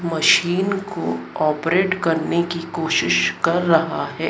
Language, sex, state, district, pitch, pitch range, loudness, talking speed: Hindi, female, Madhya Pradesh, Dhar, 170 Hz, 160-175 Hz, -19 LUFS, 125 wpm